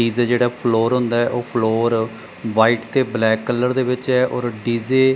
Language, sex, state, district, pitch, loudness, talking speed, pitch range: Punjabi, male, Punjab, Pathankot, 120 Hz, -19 LUFS, 185 wpm, 115-125 Hz